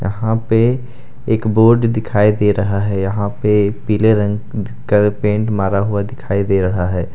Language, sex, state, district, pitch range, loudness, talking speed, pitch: Hindi, male, Jharkhand, Deoghar, 100-110 Hz, -16 LUFS, 170 wpm, 105 Hz